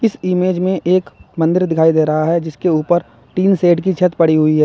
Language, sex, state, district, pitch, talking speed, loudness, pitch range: Hindi, male, Uttar Pradesh, Lalitpur, 175 Hz, 230 wpm, -15 LUFS, 160-185 Hz